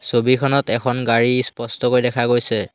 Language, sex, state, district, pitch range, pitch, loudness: Assamese, male, Assam, Hailakandi, 120-125 Hz, 125 Hz, -18 LUFS